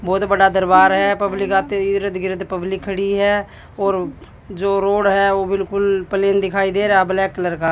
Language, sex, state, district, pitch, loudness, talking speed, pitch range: Hindi, female, Haryana, Jhajjar, 195 Hz, -17 LUFS, 195 wpm, 190-200 Hz